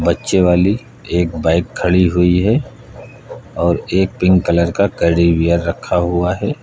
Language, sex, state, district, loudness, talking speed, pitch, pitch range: Hindi, male, Uttar Pradesh, Lucknow, -15 LUFS, 155 wpm, 90 Hz, 85-95 Hz